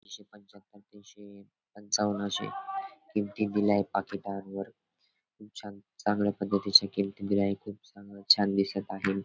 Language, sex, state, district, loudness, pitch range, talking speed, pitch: Marathi, male, Maharashtra, Dhule, -29 LUFS, 100-105 Hz, 130 wpm, 100 Hz